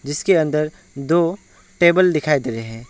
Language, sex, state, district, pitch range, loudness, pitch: Hindi, male, West Bengal, Alipurduar, 130-170 Hz, -18 LUFS, 150 Hz